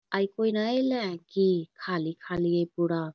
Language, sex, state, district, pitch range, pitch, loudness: Magahi, female, Bihar, Lakhisarai, 170-200 Hz, 180 Hz, -28 LUFS